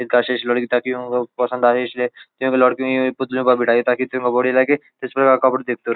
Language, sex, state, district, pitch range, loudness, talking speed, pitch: Garhwali, male, Uttarakhand, Uttarkashi, 125-130 Hz, -18 LUFS, 220 wpm, 125 Hz